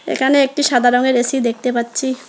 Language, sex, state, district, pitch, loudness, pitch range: Bengali, male, West Bengal, Alipurduar, 255 Hz, -15 LUFS, 245-270 Hz